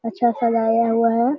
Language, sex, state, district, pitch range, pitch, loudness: Hindi, male, Bihar, Jamui, 230-235 Hz, 230 Hz, -19 LUFS